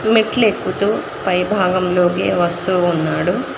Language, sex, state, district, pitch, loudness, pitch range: Telugu, female, Telangana, Mahabubabad, 185 Hz, -16 LUFS, 180-210 Hz